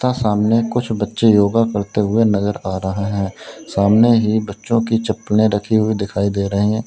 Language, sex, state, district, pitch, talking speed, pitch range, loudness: Hindi, male, Uttar Pradesh, Lalitpur, 105 Hz, 190 wpm, 100-115 Hz, -17 LUFS